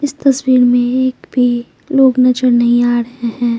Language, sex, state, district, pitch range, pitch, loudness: Hindi, female, Bihar, Patna, 240-260 Hz, 245 Hz, -13 LUFS